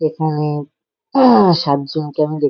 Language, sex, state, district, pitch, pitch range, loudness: Bengali, male, West Bengal, Malda, 150 Hz, 145-160 Hz, -15 LUFS